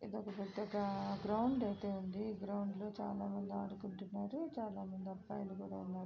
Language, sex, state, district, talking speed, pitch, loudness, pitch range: Telugu, female, Andhra Pradesh, Srikakulam, 130 wpm, 200 Hz, -42 LUFS, 195-210 Hz